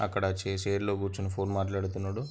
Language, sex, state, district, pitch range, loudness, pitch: Telugu, male, Andhra Pradesh, Anantapur, 95-100 Hz, -32 LUFS, 95 Hz